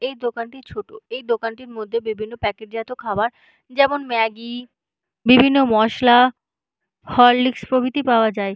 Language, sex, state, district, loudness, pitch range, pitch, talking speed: Bengali, female, West Bengal, North 24 Parganas, -18 LUFS, 225-255 Hz, 240 Hz, 120 wpm